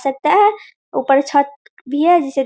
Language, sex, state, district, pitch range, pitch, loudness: Hindi, female, Bihar, Darbhanga, 275-345 Hz, 285 Hz, -16 LUFS